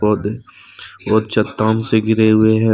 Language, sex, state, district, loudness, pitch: Hindi, male, Jharkhand, Deoghar, -16 LUFS, 110 Hz